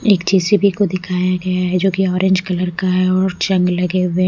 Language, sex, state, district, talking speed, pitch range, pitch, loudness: Hindi, female, Odisha, Malkangiri, 225 wpm, 180-190 Hz, 185 Hz, -16 LUFS